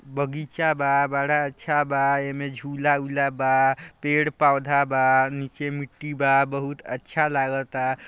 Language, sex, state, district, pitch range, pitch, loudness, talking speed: Bhojpuri, male, Bihar, East Champaran, 135-145 Hz, 140 Hz, -23 LUFS, 135 wpm